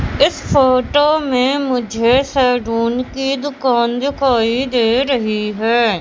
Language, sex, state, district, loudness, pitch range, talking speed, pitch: Hindi, female, Madhya Pradesh, Katni, -15 LUFS, 235-270 Hz, 110 wpm, 250 Hz